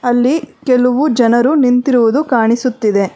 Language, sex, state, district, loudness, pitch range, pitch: Kannada, female, Karnataka, Bangalore, -13 LUFS, 235-265 Hz, 250 Hz